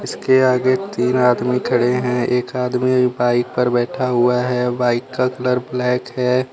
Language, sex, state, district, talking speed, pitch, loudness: Hindi, male, Jharkhand, Deoghar, 165 wpm, 125 Hz, -18 LUFS